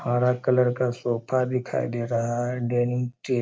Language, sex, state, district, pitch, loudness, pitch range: Hindi, male, Bihar, Darbhanga, 125 Hz, -25 LUFS, 120-125 Hz